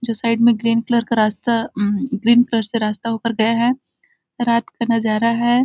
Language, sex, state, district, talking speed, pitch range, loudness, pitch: Hindi, female, Chhattisgarh, Balrampur, 210 wpm, 225-235 Hz, -18 LUFS, 230 Hz